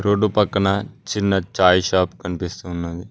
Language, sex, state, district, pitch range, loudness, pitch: Telugu, male, Telangana, Mahabubabad, 90-105 Hz, -20 LUFS, 95 Hz